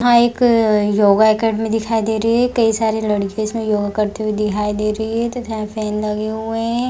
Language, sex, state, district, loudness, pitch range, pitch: Hindi, female, Bihar, Bhagalpur, -17 LUFS, 210-225 Hz, 220 Hz